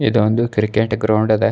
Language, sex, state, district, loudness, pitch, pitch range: Kannada, male, Karnataka, Bidar, -17 LUFS, 110 Hz, 110-115 Hz